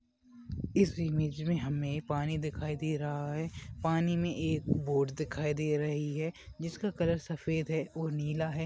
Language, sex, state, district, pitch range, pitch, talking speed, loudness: Hindi, male, Goa, North and South Goa, 150-165 Hz, 155 Hz, 165 wpm, -34 LUFS